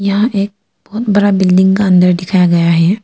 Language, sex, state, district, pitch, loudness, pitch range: Hindi, female, Arunachal Pradesh, Lower Dibang Valley, 190 Hz, -11 LUFS, 180-205 Hz